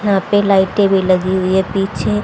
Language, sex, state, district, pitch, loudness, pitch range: Hindi, female, Haryana, Rohtak, 190 Hz, -14 LUFS, 185-195 Hz